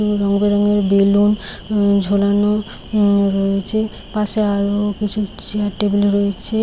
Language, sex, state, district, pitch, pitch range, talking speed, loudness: Bengali, female, West Bengal, Paschim Medinipur, 205 Hz, 200-210 Hz, 155 wpm, -17 LUFS